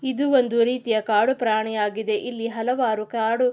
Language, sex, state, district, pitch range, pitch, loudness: Kannada, female, Karnataka, Mysore, 220-250 Hz, 230 Hz, -22 LUFS